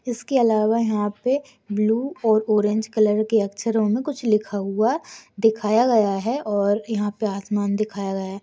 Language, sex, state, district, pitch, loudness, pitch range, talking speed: Hindi, female, Goa, North and South Goa, 215 Hz, -22 LUFS, 205-230 Hz, 170 wpm